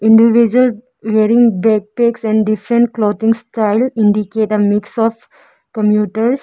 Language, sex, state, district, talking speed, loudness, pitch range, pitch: English, female, Arunachal Pradesh, Lower Dibang Valley, 110 wpm, -14 LUFS, 215-235 Hz, 220 Hz